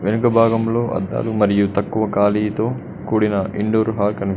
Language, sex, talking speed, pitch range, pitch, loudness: Telugu, male, 135 wpm, 100-110 Hz, 105 Hz, -18 LUFS